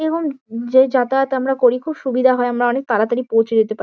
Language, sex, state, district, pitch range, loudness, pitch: Bengali, female, West Bengal, Kolkata, 235-270 Hz, -17 LUFS, 255 Hz